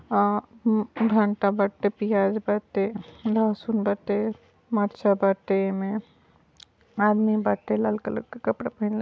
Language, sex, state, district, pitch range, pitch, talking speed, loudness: Bhojpuri, female, Uttar Pradesh, Ghazipur, 195-215 Hz, 205 Hz, 125 wpm, -25 LUFS